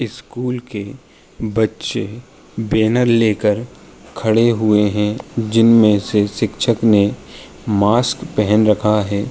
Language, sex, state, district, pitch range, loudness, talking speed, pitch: Hindi, male, Uttar Pradesh, Jalaun, 105-115 Hz, -16 LUFS, 105 wpm, 110 Hz